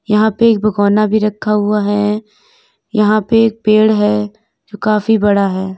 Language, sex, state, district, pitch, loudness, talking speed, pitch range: Hindi, female, Uttar Pradesh, Lalitpur, 215 Hz, -13 LUFS, 175 wpm, 210-220 Hz